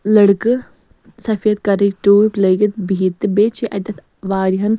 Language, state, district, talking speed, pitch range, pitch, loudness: Kashmiri, Punjab, Kapurthala, 140 wpm, 195-215 Hz, 205 Hz, -16 LUFS